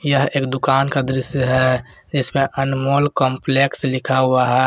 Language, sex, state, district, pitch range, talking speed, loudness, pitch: Hindi, male, Jharkhand, Garhwa, 130-140 Hz, 155 wpm, -18 LUFS, 135 Hz